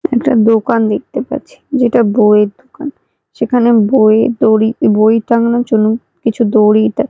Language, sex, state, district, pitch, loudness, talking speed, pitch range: Bengali, female, Odisha, Malkangiri, 230 Hz, -12 LUFS, 135 wpm, 220-245 Hz